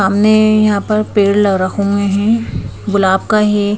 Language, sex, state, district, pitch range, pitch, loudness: Hindi, female, Madhya Pradesh, Bhopal, 200-215 Hz, 205 Hz, -13 LUFS